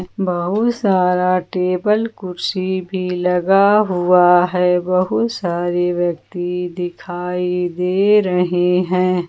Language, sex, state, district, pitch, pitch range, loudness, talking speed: Hindi, female, Jharkhand, Ranchi, 180 Hz, 180-185 Hz, -17 LUFS, 95 wpm